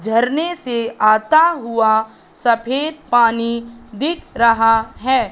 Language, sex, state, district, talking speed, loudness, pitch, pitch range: Hindi, female, Madhya Pradesh, Katni, 100 wpm, -16 LUFS, 235 Hz, 225-280 Hz